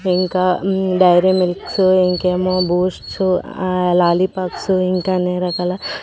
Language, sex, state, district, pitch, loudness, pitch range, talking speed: Telugu, female, Andhra Pradesh, Manyam, 185 Hz, -17 LUFS, 180-185 Hz, 110 wpm